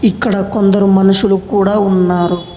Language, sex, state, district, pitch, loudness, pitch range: Telugu, male, Telangana, Hyderabad, 195 Hz, -12 LUFS, 190-205 Hz